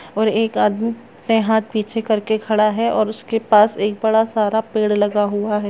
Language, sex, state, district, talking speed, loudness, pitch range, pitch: Hindi, female, Chhattisgarh, Raigarh, 200 wpm, -18 LUFS, 210-225 Hz, 220 Hz